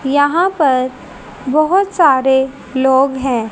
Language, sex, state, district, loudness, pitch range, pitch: Hindi, female, Haryana, Rohtak, -14 LUFS, 260-300 Hz, 265 Hz